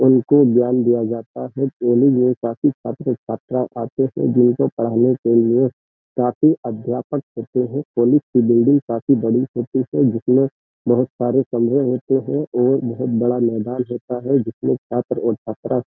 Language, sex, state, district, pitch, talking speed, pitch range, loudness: Hindi, male, Uttar Pradesh, Jyotiba Phule Nagar, 125 Hz, 165 wpm, 120-130 Hz, -18 LUFS